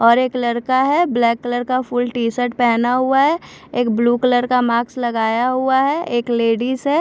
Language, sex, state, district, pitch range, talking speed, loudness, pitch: Hindi, female, Punjab, Fazilka, 235-255 Hz, 205 wpm, -17 LUFS, 245 Hz